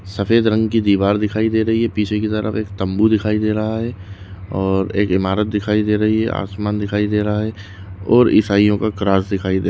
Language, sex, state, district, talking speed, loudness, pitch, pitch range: Hindi, male, Goa, North and South Goa, 205 wpm, -17 LUFS, 105 Hz, 95-110 Hz